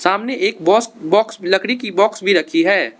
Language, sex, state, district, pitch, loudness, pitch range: Hindi, male, Arunachal Pradesh, Lower Dibang Valley, 220 Hz, -16 LUFS, 190-250 Hz